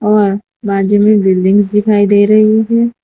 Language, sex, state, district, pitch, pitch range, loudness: Hindi, female, Gujarat, Valsad, 210 Hz, 200-215 Hz, -11 LUFS